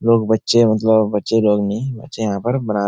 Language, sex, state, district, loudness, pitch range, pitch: Hindi, male, Bihar, Supaul, -17 LUFS, 105-115 Hz, 110 Hz